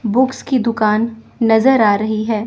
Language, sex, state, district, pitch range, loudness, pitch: Hindi, female, Chandigarh, Chandigarh, 215-240 Hz, -15 LUFS, 225 Hz